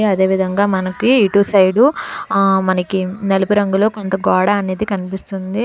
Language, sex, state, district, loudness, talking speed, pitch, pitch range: Telugu, female, Telangana, Hyderabad, -15 LUFS, 140 wpm, 195 Hz, 190-205 Hz